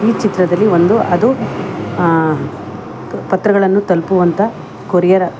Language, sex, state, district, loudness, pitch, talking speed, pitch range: Kannada, female, Karnataka, Bangalore, -14 LUFS, 180 Hz, 80 wpm, 165-200 Hz